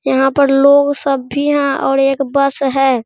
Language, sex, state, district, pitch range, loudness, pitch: Hindi, male, Bihar, Araria, 270-280 Hz, -13 LUFS, 275 Hz